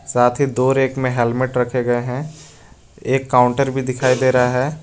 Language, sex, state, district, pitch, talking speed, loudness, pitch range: Hindi, male, Jharkhand, Garhwa, 130 Hz, 200 wpm, -18 LUFS, 125-135 Hz